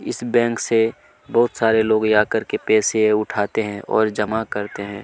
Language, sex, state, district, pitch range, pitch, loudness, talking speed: Hindi, male, Chhattisgarh, Kabirdham, 105-115 Hz, 110 Hz, -19 LUFS, 180 wpm